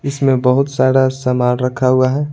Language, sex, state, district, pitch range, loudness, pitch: Hindi, male, Bihar, Patna, 125-135 Hz, -15 LUFS, 130 Hz